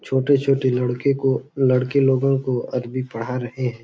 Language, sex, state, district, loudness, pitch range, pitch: Hindi, male, Uttar Pradesh, Ghazipur, -21 LUFS, 125-135 Hz, 130 Hz